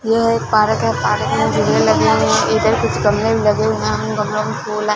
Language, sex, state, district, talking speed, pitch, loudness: Hindi, female, Punjab, Fazilka, 265 wpm, 210 Hz, -16 LUFS